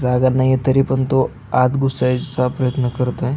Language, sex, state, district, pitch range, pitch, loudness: Marathi, male, Maharashtra, Aurangabad, 125-130 Hz, 130 Hz, -17 LUFS